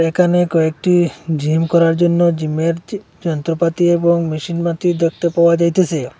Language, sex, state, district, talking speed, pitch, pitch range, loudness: Bengali, male, Assam, Hailakandi, 125 wpm, 170 Hz, 165-175 Hz, -16 LUFS